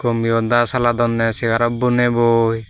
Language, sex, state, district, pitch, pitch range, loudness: Chakma, male, Tripura, Dhalai, 120 Hz, 115-120 Hz, -17 LUFS